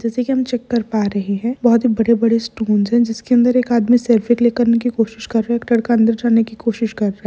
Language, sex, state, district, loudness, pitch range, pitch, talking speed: Hindi, female, Bihar, Kishanganj, -16 LUFS, 225-240 Hz, 230 Hz, 265 wpm